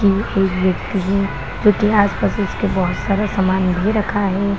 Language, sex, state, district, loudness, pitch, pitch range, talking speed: Hindi, female, Bihar, Kishanganj, -18 LUFS, 200 Hz, 190-205 Hz, 185 wpm